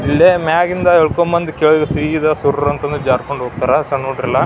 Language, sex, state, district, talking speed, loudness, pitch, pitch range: Kannada, male, Karnataka, Belgaum, 175 wpm, -14 LUFS, 150 Hz, 140-160 Hz